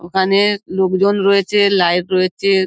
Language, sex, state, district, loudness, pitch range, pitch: Bengali, female, West Bengal, Dakshin Dinajpur, -15 LUFS, 185-200 Hz, 190 Hz